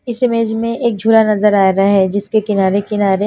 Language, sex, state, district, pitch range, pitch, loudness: Hindi, female, Bihar, Katihar, 200-225 Hz, 210 Hz, -14 LUFS